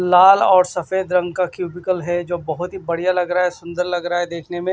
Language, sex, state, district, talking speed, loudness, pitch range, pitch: Hindi, male, Maharashtra, Washim, 255 wpm, -19 LUFS, 175-180 Hz, 180 Hz